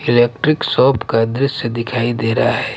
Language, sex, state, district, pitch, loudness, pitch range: Hindi, male, Punjab, Pathankot, 120 Hz, -16 LUFS, 115-130 Hz